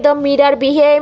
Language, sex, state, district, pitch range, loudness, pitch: Hindi, female, Bihar, Jamui, 280-295 Hz, -12 LUFS, 285 Hz